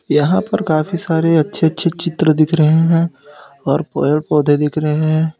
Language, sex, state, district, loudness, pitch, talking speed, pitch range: Hindi, male, Uttar Pradesh, Lalitpur, -15 LUFS, 155 Hz, 180 wpm, 150-165 Hz